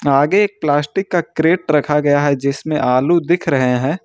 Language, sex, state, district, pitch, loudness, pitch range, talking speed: Hindi, male, Jharkhand, Ranchi, 150 Hz, -16 LUFS, 140-170 Hz, 190 wpm